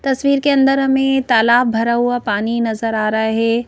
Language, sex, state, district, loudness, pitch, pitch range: Hindi, female, Madhya Pradesh, Bhopal, -15 LUFS, 235 Hz, 225-270 Hz